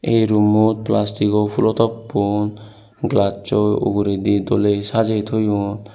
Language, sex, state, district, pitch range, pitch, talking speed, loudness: Chakma, male, Tripura, Unakoti, 100-110 Hz, 105 Hz, 90 wpm, -18 LUFS